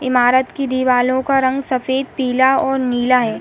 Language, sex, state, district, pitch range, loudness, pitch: Hindi, female, Uttar Pradesh, Hamirpur, 250-265 Hz, -16 LUFS, 260 Hz